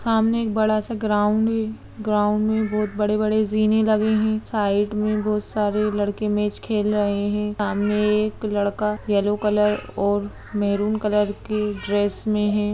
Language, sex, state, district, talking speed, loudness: Hindi, female, Bihar, Sitamarhi, 160 wpm, -22 LUFS